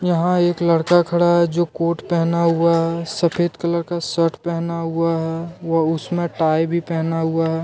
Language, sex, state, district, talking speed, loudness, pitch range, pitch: Hindi, male, Jharkhand, Deoghar, 190 wpm, -19 LUFS, 165-170 Hz, 170 Hz